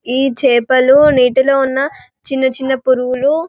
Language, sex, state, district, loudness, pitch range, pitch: Telugu, female, Telangana, Karimnagar, -13 LUFS, 255-275 Hz, 265 Hz